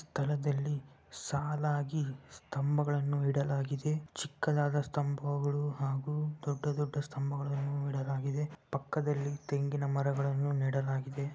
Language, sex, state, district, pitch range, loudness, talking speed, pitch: Kannada, male, Karnataka, Bellary, 140-145 Hz, -34 LUFS, 80 wpm, 145 Hz